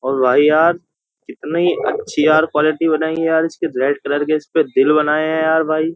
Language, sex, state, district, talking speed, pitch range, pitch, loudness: Hindi, male, Uttar Pradesh, Jyotiba Phule Nagar, 190 wpm, 150-165 Hz, 155 Hz, -16 LUFS